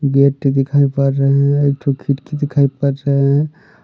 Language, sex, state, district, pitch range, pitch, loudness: Hindi, male, Jharkhand, Deoghar, 140-145 Hz, 140 Hz, -15 LUFS